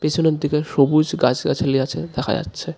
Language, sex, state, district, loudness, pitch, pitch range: Bengali, male, West Bengal, Darjeeling, -19 LUFS, 150 Hz, 135-155 Hz